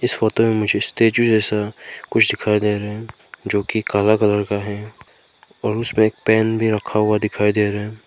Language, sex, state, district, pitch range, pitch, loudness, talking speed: Hindi, male, Nagaland, Kohima, 105-110 Hz, 105 Hz, -18 LUFS, 210 wpm